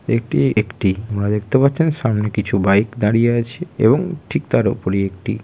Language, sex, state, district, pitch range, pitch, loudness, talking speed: Bengali, male, West Bengal, Kolkata, 100-125 Hz, 110 Hz, -18 LUFS, 165 wpm